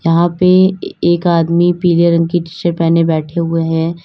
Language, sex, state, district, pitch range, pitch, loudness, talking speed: Hindi, female, Uttar Pradesh, Lalitpur, 165-175 Hz, 170 Hz, -13 LUFS, 195 wpm